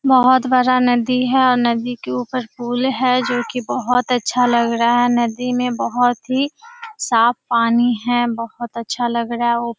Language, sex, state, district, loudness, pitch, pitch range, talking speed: Hindi, female, Bihar, Kishanganj, -17 LUFS, 245 Hz, 235-255 Hz, 190 wpm